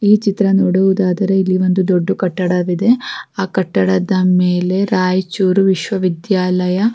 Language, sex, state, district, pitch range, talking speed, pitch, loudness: Kannada, female, Karnataka, Raichur, 180-195 Hz, 130 wpm, 185 Hz, -15 LUFS